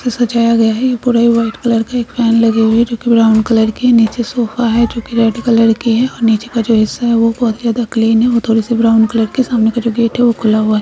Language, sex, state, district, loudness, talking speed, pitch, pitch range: Hindi, female, Uttar Pradesh, Hamirpur, -12 LUFS, 330 wpm, 230 Hz, 225-235 Hz